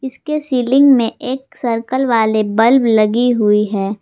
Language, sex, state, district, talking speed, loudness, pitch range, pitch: Hindi, female, Jharkhand, Garhwa, 150 wpm, -14 LUFS, 220-265 Hz, 240 Hz